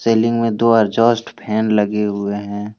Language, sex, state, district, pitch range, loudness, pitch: Hindi, male, Jharkhand, Deoghar, 105-115 Hz, -17 LUFS, 110 Hz